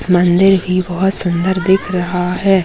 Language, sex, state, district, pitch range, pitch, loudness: Hindi, male, Chhattisgarh, Rajnandgaon, 180-190 Hz, 180 Hz, -14 LUFS